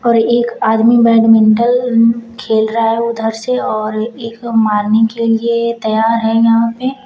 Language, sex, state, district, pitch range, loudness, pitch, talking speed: Hindi, female, Uttar Pradesh, Shamli, 225-235 Hz, -13 LUFS, 230 Hz, 145 wpm